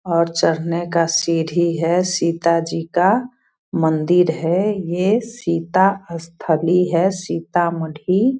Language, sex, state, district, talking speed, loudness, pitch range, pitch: Hindi, female, Bihar, Sitamarhi, 105 wpm, -18 LUFS, 165-185 Hz, 170 Hz